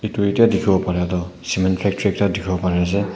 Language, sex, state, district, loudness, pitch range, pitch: Nagamese, male, Nagaland, Kohima, -19 LUFS, 90-100 Hz, 95 Hz